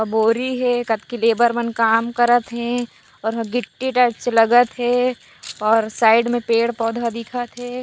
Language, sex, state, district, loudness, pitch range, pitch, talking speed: Chhattisgarhi, female, Chhattisgarh, Raigarh, -19 LUFS, 225-245 Hz, 235 Hz, 160 wpm